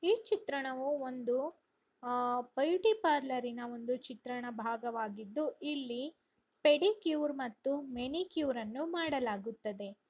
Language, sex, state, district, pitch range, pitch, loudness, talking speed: Kannada, female, Karnataka, Raichur, 245-305 Hz, 265 Hz, -35 LUFS, 85 wpm